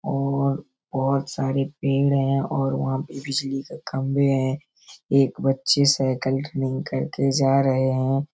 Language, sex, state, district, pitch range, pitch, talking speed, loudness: Hindi, male, Bihar, Darbhanga, 135-140 Hz, 135 Hz, 145 wpm, -23 LUFS